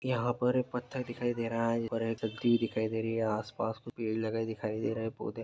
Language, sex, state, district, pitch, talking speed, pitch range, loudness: Hindi, male, Chhattisgarh, Balrampur, 115 Hz, 255 wpm, 110-120 Hz, -33 LUFS